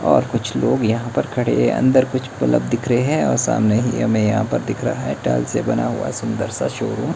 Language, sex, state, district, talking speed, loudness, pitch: Hindi, male, Himachal Pradesh, Shimla, 250 wpm, -19 LUFS, 110 Hz